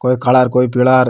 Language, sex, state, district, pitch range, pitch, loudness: Rajasthani, male, Rajasthan, Nagaur, 125-130 Hz, 125 Hz, -13 LUFS